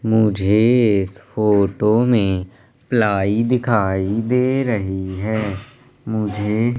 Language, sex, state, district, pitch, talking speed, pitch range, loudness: Hindi, male, Madhya Pradesh, Umaria, 110 Hz, 95 wpm, 100-120 Hz, -18 LUFS